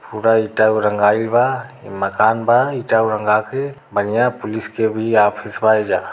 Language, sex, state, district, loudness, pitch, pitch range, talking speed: Bhojpuri, male, Uttar Pradesh, Deoria, -17 LUFS, 110 Hz, 105-120 Hz, 175 wpm